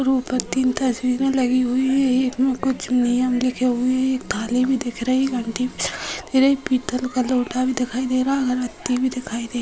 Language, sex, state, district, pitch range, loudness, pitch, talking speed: Hindi, female, Bihar, Gopalganj, 250-260 Hz, -21 LUFS, 255 Hz, 195 wpm